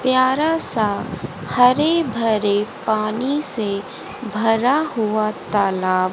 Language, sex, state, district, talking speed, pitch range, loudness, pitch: Hindi, female, Haryana, Jhajjar, 90 wpm, 210-260 Hz, -19 LUFS, 225 Hz